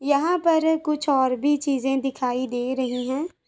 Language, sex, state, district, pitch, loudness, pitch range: Hindi, female, Uttar Pradesh, Gorakhpur, 270 Hz, -23 LUFS, 260-300 Hz